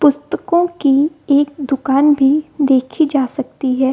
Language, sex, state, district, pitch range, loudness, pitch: Hindi, female, Bihar, Gopalganj, 270-305 Hz, -15 LUFS, 285 Hz